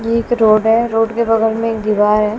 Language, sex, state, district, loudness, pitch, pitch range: Hindi, female, Bihar, West Champaran, -14 LUFS, 225 Hz, 215-230 Hz